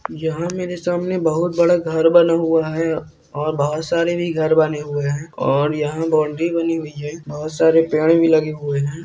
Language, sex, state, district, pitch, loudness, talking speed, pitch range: Hindi, male, Rajasthan, Churu, 160 Hz, -18 LUFS, 200 wpm, 150-165 Hz